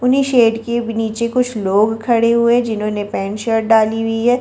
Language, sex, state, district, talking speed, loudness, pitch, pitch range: Hindi, female, Delhi, New Delhi, 205 wpm, -16 LUFS, 225 Hz, 220-235 Hz